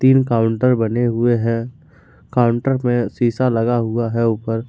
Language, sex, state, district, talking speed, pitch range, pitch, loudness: Hindi, male, Jharkhand, Ranchi, 155 wpm, 115-125 Hz, 120 Hz, -18 LUFS